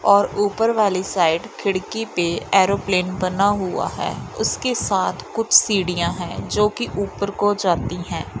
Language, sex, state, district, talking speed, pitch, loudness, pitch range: Hindi, male, Punjab, Fazilka, 150 wpm, 195 Hz, -20 LUFS, 180-210 Hz